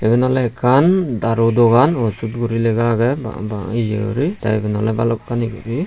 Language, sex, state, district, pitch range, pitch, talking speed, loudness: Chakma, male, Tripura, Unakoti, 115-120 Hz, 115 Hz, 185 wpm, -17 LUFS